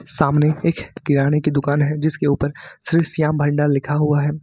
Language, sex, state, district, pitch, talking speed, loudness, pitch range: Hindi, male, Jharkhand, Ranchi, 150 Hz, 190 wpm, -19 LUFS, 145-155 Hz